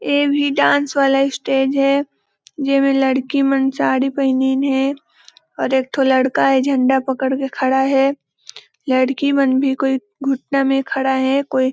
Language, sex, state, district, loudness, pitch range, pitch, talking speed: Hindi, female, Chhattisgarh, Balrampur, -17 LUFS, 265-275 Hz, 270 Hz, 160 wpm